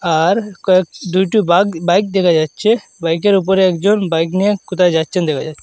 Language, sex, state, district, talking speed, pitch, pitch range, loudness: Bengali, male, Assam, Hailakandi, 170 wpm, 185 Hz, 165-200 Hz, -15 LUFS